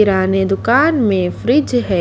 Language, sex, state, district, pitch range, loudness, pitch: Hindi, female, Haryana, Charkhi Dadri, 190-250 Hz, -15 LUFS, 210 Hz